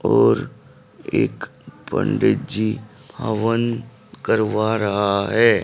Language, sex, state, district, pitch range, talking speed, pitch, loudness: Hindi, male, Haryana, Rohtak, 105-115 Hz, 85 wpm, 110 Hz, -20 LUFS